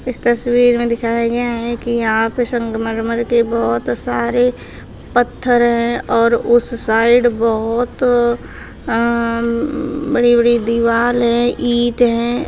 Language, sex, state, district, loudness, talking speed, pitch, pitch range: Hindi, female, Uttar Pradesh, Shamli, -15 LUFS, 125 wpm, 235 Hz, 230-240 Hz